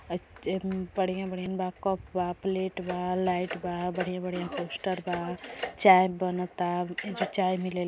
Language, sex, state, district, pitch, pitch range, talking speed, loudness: Hindi, female, Uttar Pradesh, Gorakhpur, 185 Hz, 180-190 Hz, 145 wpm, -30 LUFS